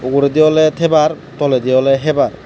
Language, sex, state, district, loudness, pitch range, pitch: Chakma, male, Tripura, Dhalai, -13 LUFS, 135-155 Hz, 150 Hz